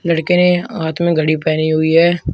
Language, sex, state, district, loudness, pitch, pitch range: Hindi, male, Uttar Pradesh, Shamli, -14 LUFS, 165 Hz, 155-175 Hz